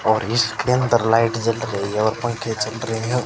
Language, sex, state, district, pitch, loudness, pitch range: Hindi, male, Rajasthan, Bikaner, 115 Hz, -20 LUFS, 110-120 Hz